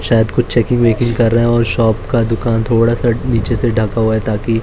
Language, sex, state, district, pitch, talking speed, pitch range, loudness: Hindi, male, Maharashtra, Mumbai Suburban, 115 Hz, 245 wpm, 115-120 Hz, -14 LUFS